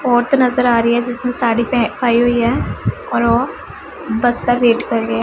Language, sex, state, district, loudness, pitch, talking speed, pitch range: Punjabi, female, Punjab, Pathankot, -16 LUFS, 240 Hz, 220 wpm, 235-245 Hz